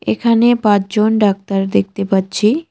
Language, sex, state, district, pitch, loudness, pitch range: Bengali, female, West Bengal, Cooch Behar, 210 Hz, -15 LUFS, 195-225 Hz